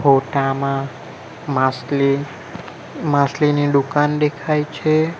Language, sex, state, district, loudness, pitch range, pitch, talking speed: Gujarati, male, Gujarat, Valsad, -18 LUFS, 140-150 Hz, 140 Hz, 80 wpm